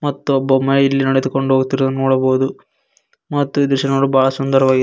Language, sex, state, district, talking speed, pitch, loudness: Kannada, male, Karnataka, Koppal, 125 wpm, 135 Hz, -16 LUFS